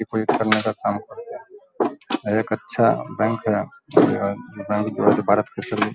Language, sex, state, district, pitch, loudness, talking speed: Hindi, male, Bihar, Vaishali, 110 Hz, -21 LUFS, 90 wpm